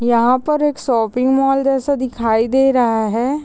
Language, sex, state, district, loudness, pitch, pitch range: Hindi, female, Bihar, Muzaffarpur, -16 LUFS, 255 Hz, 235-270 Hz